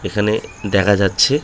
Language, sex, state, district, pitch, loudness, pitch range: Bengali, male, West Bengal, Kolkata, 100 Hz, -17 LUFS, 100-105 Hz